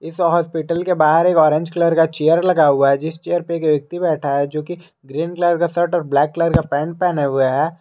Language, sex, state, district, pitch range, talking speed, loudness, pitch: Hindi, male, Jharkhand, Garhwa, 150-170 Hz, 245 wpm, -17 LUFS, 165 Hz